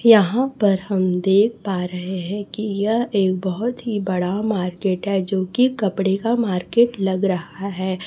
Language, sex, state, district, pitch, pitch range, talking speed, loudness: Hindi, female, Chhattisgarh, Raipur, 195 Hz, 185-220 Hz, 170 wpm, -20 LUFS